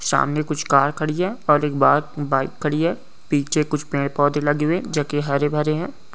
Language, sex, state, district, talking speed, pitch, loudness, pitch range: Hindi, male, Goa, North and South Goa, 205 wpm, 150 Hz, -21 LUFS, 145-155 Hz